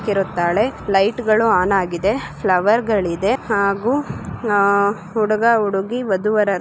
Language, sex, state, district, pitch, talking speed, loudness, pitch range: Kannada, female, Karnataka, Gulbarga, 205 Hz, 120 wpm, -18 LUFS, 195-220 Hz